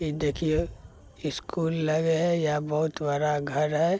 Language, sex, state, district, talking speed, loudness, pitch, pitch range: Maithili, male, Bihar, Begusarai, 150 wpm, -27 LUFS, 150 Hz, 145-160 Hz